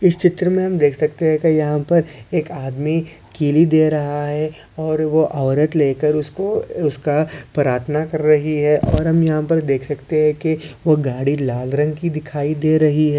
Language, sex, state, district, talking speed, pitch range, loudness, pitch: Hindi, male, Maharashtra, Sindhudurg, 190 wpm, 145-160 Hz, -18 LUFS, 150 Hz